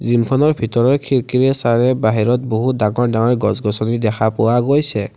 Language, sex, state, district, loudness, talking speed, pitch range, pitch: Assamese, male, Assam, Kamrup Metropolitan, -16 LUFS, 140 wpm, 110-130 Hz, 120 Hz